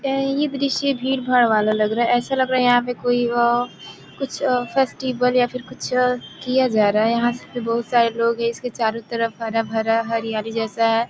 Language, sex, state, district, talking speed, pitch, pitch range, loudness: Hindi, female, Bihar, Gopalganj, 200 wpm, 240 Hz, 230-255 Hz, -20 LUFS